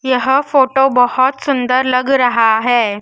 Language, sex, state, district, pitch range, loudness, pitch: Hindi, female, Madhya Pradesh, Dhar, 245-265 Hz, -13 LUFS, 255 Hz